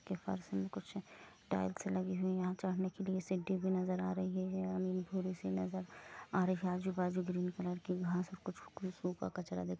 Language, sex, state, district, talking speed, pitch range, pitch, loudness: Hindi, female, Jharkhand, Jamtara, 210 wpm, 180-185 Hz, 185 Hz, -39 LUFS